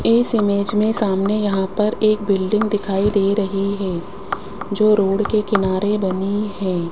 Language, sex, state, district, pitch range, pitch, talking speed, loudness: Hindi, female, Rajasthan, Jaipur, 195-210 Hz, 200 Hz, 165 wpm, -19 LUFS